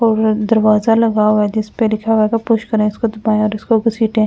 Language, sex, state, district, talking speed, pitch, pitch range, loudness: Hindi, female, Delhi, New Delhi, 240 wpm, 220 Hz, 215-225 Hz, -15 LUFS